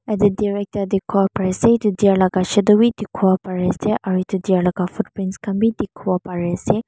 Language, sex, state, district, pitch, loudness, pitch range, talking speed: Nagamese, female, Mizoram, Aizawl, 195 Hz, -19 LUFS, 185-210 Hz, 200 wpm